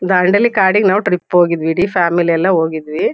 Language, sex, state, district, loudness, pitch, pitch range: Kannada, female, Karnataka, Shimoga, -14 LUFS, 180 Hz, 170-190 Hz